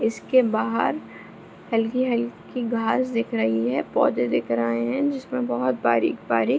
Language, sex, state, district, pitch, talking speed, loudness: Hindi, female, Bihar, Begusarai, 230 Hz, 135 wpm, -23 LUFS